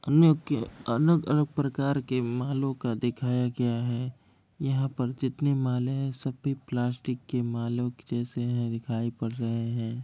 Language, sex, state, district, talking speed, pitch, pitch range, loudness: Hindi, male, Bihar, Kishanganj, 145 wpm, 125 Hz, 120-135 Hz, -29 LUFS